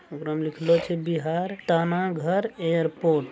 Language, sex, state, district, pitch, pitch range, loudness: Angika, male, Bihar, Araria, 165 Hz, 160-175 Hz, -25 LUFS